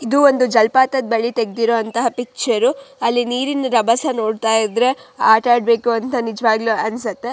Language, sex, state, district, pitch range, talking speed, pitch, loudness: Kannada, female, Karnataka, Shimoga, 225-250 Hz, 180 wpm, 235 Hz, -17 LUFS